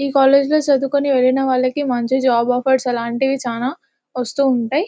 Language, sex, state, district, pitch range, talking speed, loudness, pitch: Telugu, female, Telangana, Nalgonda, 250-275 Hz, 185 wpm, -17 LUFS, 260 Hz